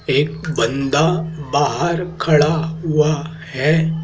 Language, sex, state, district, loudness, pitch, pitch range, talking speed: Hindi, male, Madhya Pradesh, Dhar, -18 LUFS, 155 Hz, 145-160 Hz, 90 wpm